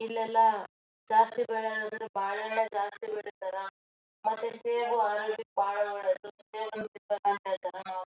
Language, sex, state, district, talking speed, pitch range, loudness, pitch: Kannada, female, Karnataka, Raichur, 110 wpm, 200-225 Hz, -31 LUFS, 215 Hz